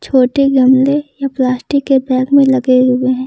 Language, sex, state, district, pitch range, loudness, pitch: Hindi, female, Jharkhand, Ranchi, 255-275 Hz, -12 LUFS, 260 Hz